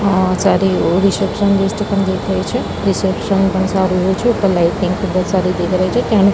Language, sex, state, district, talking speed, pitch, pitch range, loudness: Gujarati, female, Gujarat, Gandhinagar, 210 wpm, 190 Hz, 185-200 Hz, -15 LUFS